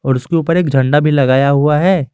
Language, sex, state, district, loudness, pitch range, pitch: Hindi, male, Jharkhand, Garhwa, -13 LUFS, 135-165 Hz, 145 Hz